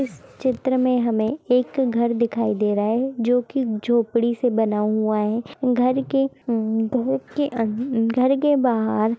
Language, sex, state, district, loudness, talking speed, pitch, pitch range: Hindi, female, Bihar, East Champaran, -21 LUFS, 170 wpm, 240 Hz, 225-260 Hz